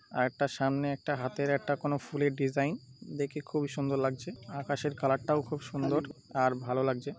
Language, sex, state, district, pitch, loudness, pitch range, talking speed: Bengali, male, West Bengal, North 24 Parganas, 140 Hz, -32 LUFS, 135-145 Hz, 175 wpm